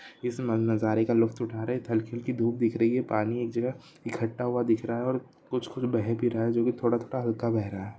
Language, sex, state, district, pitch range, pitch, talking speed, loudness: Hindi, male, Chhattisgarh, Sarguja, 115-125 Hz, 115 Hz, 270 wpm, -28 LUFS